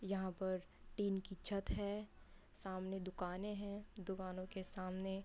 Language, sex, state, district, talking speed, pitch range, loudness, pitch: Hindi, female, Uttar Pradesh, Budaun, 150 wpm, 185-200 Hz, -45 LUFS, 190 Hz